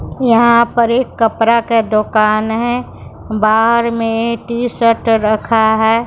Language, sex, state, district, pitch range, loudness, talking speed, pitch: Hindi, female, Bihar, West Champaran, 220-235 Hz, -13 LUFS, 130 wpm, 230 Hz